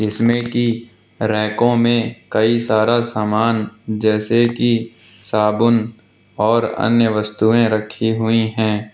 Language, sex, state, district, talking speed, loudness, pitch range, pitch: Hindi, male, Uttar Pradesh, Lucknow, 105 wpm, -17 LUFS, 110-115 Hz, 110 Hz